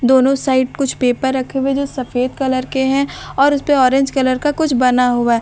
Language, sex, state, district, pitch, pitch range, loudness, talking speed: Hindi, female, Bihar, Katihar, 265 Hz, 255-275 Hz, -16 LUFS, 235 wpm